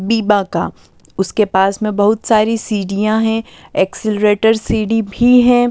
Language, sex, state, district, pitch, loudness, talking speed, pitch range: Hindi, female, Delhi, New Delhi, 215 Hz, -15 LUFS, 135 wpm, 205-225 Hz